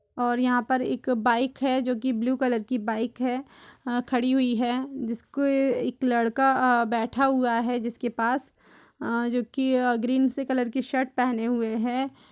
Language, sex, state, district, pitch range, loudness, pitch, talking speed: Hindi, female, Bihar, Purnia, 240-260 Hz, -25 LUFS, 250 Hz, 170 wpm